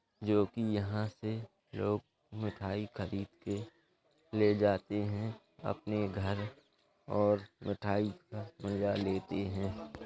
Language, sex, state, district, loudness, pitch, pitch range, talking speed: Hindi, male, Uttar Pradesh, Jalaun, -36 LUFS, 105 Hz, 100-105 Hz, 115 wpm